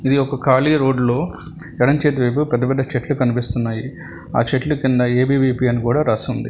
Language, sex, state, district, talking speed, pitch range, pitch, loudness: Telugu, male, Telangana, Hyderabad, 175 wpm, 120-135 Hz, 130 Hz, -18 LUFS